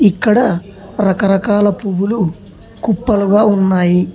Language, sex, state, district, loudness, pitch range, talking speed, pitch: Telugu, male, Telangana, Hyderabad, -14 LUFS, 185-210 Hz, 70 wpm, 195 Hz